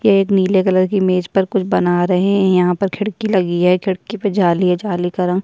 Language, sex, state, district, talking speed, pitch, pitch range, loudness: Hindi, female, Uttarakhand, Tehri Garhwal, 265 wpm, 185 Hz, 180-195 Hz, -16 LUFS